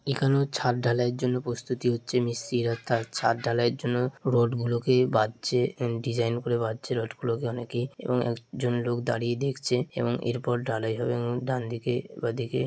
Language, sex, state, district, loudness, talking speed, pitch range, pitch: Bengali, male, West Bengal, Dakshin Dinajpur, -28 LUFS, 140 wpm, 120-125 Hz, 120 Hz